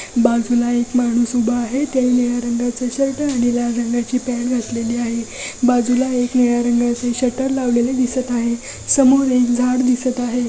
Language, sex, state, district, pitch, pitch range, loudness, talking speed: Marathi, female, Maharashtra, Dhule, 245 Hz, 240-255 Hz, -18 LUFS, 160 wpm